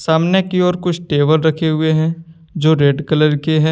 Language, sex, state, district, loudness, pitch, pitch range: Hindi, male, Jharkhand, Deoghar, -15 LUFS, 160 Hz, 155-170 Hz